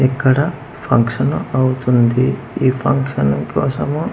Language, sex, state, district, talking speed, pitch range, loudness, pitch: Telugu, male, Andhra Pradesh, Manyam, 85 wpm, 120-135 Hz, -16 LUFS, 130 Hz